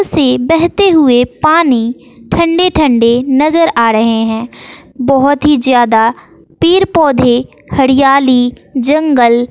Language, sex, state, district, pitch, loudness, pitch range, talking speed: Hindi, female, Bihar, West Champaran, 265 Hz, -10 LUFS, 245-310 Hz, 105 wpm